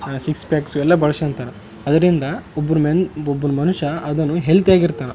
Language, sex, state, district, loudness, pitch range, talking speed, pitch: Kannada, male, Karnataka, Raichur, -18 LUFS, 145-170 Hz, 150 wpm, 155 Hz